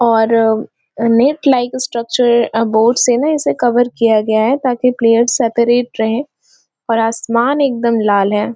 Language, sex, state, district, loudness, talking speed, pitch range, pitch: Hindi, female, Chhattisgarh, Korba, -14 LUFS, 140 wpm, 225-250 Hz, 235 Hz